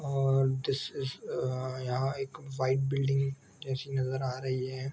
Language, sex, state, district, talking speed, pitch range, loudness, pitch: Hindi, male, Jharkhand, Sahebganj, 160 wpm, 130-135 Hz, -32 LUFS, 135 Hz